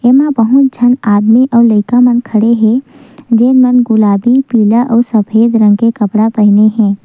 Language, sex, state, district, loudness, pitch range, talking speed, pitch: Chhattisgarhi, female, Chhattisgarh, Sukma, -9 LUFS, 215-245 Hz, 160 wpm, 230 Hz